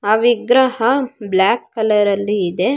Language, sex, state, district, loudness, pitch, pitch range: Kannada, female, Karnataka, Chamarajanagar, -16 LUFS, 220 Hz, 200-250 Hz